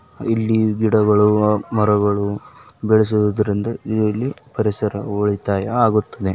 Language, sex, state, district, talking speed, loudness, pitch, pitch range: Kannada, male, Karnataka, Bijapur, 75 wpm, -18 LUFS, 105 Hz, 105-110 Hz